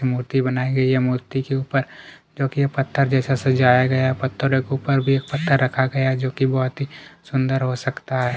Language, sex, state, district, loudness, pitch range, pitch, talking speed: Hindi, male, Chhattisgarh, Kabirdham, -20 LUFS, 130-135 Hz, 130 Hz, 220 wpm